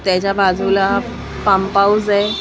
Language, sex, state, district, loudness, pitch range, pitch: Marathi, female, Maharashtra, Mumbai Suburban, -15 LUFS, 195-205 Hz, 195 Hz